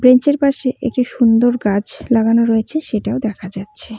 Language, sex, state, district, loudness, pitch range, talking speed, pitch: Bengali, female, West Bengal, Cooch Behar, -16 LUFS, 220-255 Hz, 165 wpm, 235 Hz